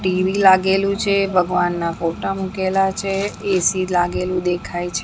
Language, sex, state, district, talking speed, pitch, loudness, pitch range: Gujarati, female, Maharashtra, Mumbai Suburban, 130 wpm, 185 Hz, -19 LUFS, 180-195 Hz